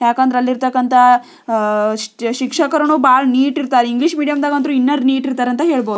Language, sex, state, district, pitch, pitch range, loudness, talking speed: Kannada, female, Karnataka, Belgaum, 255 Hz, 245-290 Hz, -15 LUFS, 170 wpm